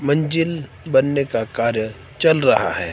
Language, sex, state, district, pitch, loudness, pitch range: Hindi, male, Himachal Pradesh, Shimla, 130 Hz, -19 LUFS, 110-150 Hz